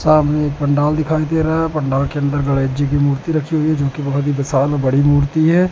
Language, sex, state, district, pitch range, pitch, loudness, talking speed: Hindi, male, Madhya Pradesh, Katni, 140-155 Hz, 145 Hz, -16 LUFS, 270 wpm